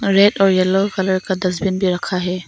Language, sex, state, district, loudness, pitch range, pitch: Hindi, female, Arunachal Pradesh, Longding, -17 LUFS, 185-195 Hz, 190 Hz